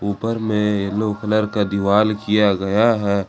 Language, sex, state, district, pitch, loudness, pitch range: Hindi, male, Jharkhand, Ranchi, 105 Hz, -19 LUFS, 100-110 Hz